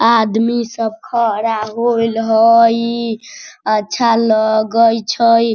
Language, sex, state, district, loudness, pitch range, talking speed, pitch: Hindi, female, Bihar, Sitamarhi, -14 LUFS, 220-230 Hz, 85 wpm, 230 Hz